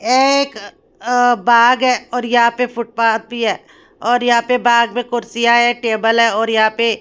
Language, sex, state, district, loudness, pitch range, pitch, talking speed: Hindi, female, Haryana, Rohtak, -15 LUFS, 230-245 Hz, 235 Hz, 195 wpm